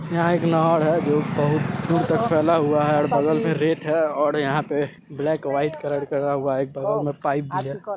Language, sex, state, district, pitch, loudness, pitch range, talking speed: Hindi, male, Bihar, Supaul, 150 Hz, -22 LUFS, 145-160 Hz, 235 wpm